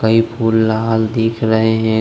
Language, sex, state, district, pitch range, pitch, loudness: Hindi, male, Jharkhand, Deoghar, 110-115 Hz, 110 Hz, -15 LUFS